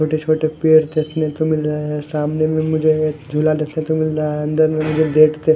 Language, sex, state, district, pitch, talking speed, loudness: Hindi, male, Punjab, Fazilka, 155 Hz, 250 wpm, -17 LUFS